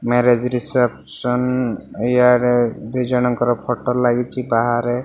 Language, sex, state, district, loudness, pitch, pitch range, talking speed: Odia, male, Odisha, Malkangiri, -18 LUFS, 125 Hz, 120-125 Hz, 85 wpm